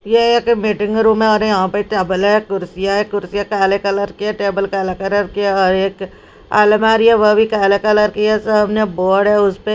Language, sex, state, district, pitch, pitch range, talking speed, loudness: Hindi, female, Haryana, Rohtak, 205 Hz, 195-215 Hz, 220 wpm, -15 LUFS